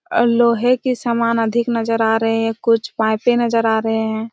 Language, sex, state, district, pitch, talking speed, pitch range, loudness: Hindi, female, Chhattisgarh, Raigarh, 230 Hz, 210 wpm, 225-235 Hz, -17 LUFS